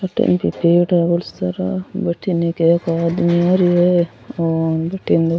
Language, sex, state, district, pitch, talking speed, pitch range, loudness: Rajasthani, female, Rajasthan, Churu, 170 Hz, 110 wpm, 165-175 Hz, -17 LUFS